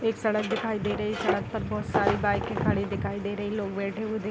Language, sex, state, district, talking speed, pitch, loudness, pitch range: Hindi, female, Bihar, Darbhanga, 290 wpm, 210 Hz, -28 LUFS, 205-220 Hz